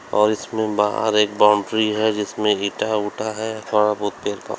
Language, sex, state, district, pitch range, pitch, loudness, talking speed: Hindi, male, Uttar Pradesh, Lalitpur, 105-110 Hz, 105 Hz, -20 LUFS, 185 wpm